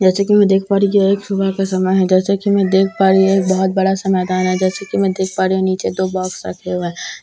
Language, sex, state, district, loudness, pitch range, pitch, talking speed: Hindi, female, Bihar, Katihar, -15 LUFS, 185-195 Hz, 190 Hz, 355 wpm